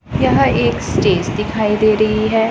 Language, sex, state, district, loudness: Hindi, female, Punjab, Pathankot, -15 LUFS